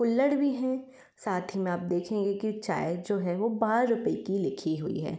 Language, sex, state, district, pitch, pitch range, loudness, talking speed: Hindi, female, Uttar Pradesh, Varanasi, 205 Hz, 180-235 Hz, -29 LUFS, 210 wpm